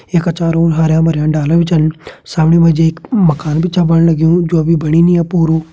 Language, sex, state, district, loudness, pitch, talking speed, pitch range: Garhwali, male, Uttarakhand, Tehri Garhwal, -12 LUFS, 165 Hz, 230 wpm, 160-170 Hz